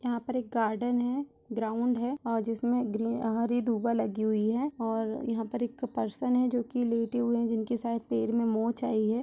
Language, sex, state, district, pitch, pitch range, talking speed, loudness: Hindi, female, Bihar, Purnia, 235 Hz, 225-245 Hz, 210 wpm, -30 LUFS